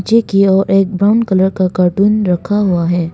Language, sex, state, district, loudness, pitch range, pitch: Hindi, female, Arunachal Pradesh, Longding, -13 LUFS, 180-205 Hz, 195 Hz